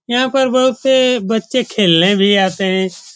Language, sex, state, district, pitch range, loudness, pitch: Hindi, male, Bihar, Saran, 190-255 Hz, -14 LUFS, 225 Hz